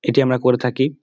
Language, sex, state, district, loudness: Bengali, male, West Bengal, Dakshin Dinajpur, -18 LUFS